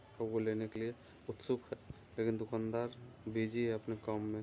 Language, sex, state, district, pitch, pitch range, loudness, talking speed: Hindi, male, Bihar, Muzaffarpur, 110 Hz, 110-115 Hz, -40 LUFS, 190 wpm